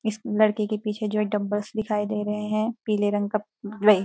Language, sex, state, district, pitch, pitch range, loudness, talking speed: Hindi, female, Uttarakhand, Uttarkashi, 210 Hz, 210-215 Hz, -25 LUFS, 220 wpm